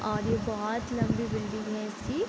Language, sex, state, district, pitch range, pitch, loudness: Hindi, female, Bihar, Sitamarhi, 215-225 Hz, 215 Hz, -31 LUFS